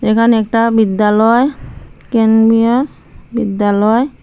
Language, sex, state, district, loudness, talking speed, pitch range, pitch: Bengali, female, Assam, Hailakandi, -12 LUFS, 70 wpm, 220-235 Hz, 225 Hz